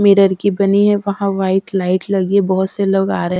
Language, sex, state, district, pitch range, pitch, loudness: Hindi, female, Haryana, Rohtak, 190-200 Hz, 195 Hz, -15 LUFS